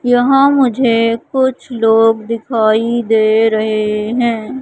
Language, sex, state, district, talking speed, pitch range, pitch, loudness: Hindi, female, Madhya Pradesh, Katni, 105 wpm, 220-245 Hz, 230 Hz, -13 LUFS